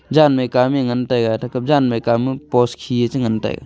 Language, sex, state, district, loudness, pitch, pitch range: Wancho, male, Arunachal Pradesh, Longding, -17 LUFS, 125 Hz, 120-130 Hz